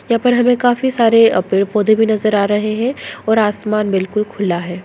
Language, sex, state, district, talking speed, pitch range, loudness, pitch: Hindi, female, Bihar, Lakhisarai, 200 wpm, 205-230 Hz, -15 LUFS, 215 Hz